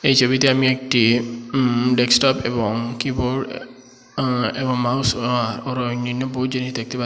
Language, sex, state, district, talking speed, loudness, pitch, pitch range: Bengali, male, Assam, Hailakandi, 155 wpm, -20 LUFS, 125 Hz, 120-130 Hz